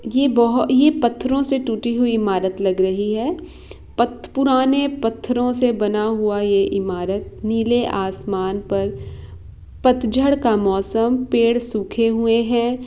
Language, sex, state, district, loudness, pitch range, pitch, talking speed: Hindi, female, Bihar, Saran, -19 LUFS, 200-245 Hz, 230 Hz, 125 wpm